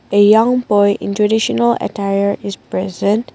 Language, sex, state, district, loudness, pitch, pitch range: English, female, Nagaland, Dimapur, -15 LUFS, 205 Hz, 200-220 Hz